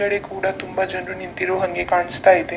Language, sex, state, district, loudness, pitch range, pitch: Kannada, female, Karnataka, Dakshina Kannada, -20 LUFS, 185-190 Hz, 190 Hz